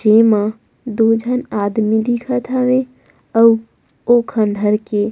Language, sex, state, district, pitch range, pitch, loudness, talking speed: Chhattisgarhi, female, Chhattisgarh, Rajnandgaon, 215-245 Hz, 225 Hz, -16 LUFS, 115 wpm